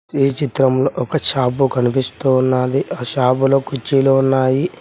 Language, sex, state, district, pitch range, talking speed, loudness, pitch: Telugu, male, Telangana, Mahabubabad, 130-135 Hz, 125 wpm, -16 LUFS, 135 Hz